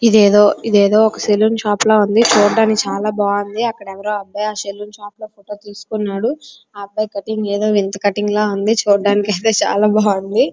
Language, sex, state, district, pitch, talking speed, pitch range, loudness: Telugu, female, Andhra Pradesh, Srikakulam, 210 Hz, 160 wpm, 205-215 Hz, -15 LUFS